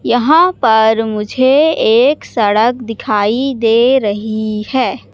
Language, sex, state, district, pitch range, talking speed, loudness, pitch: Hindi, female, Madhya Pradesh, Katni, 215-265 Hz, 105 wpm, -12 LUFS, 235 Hz